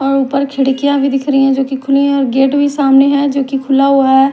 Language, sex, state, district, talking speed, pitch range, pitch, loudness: Hindi, female, Bihar, Patna, 265 wpm, 270-280 Hz, 275 Hz, -12 LUFS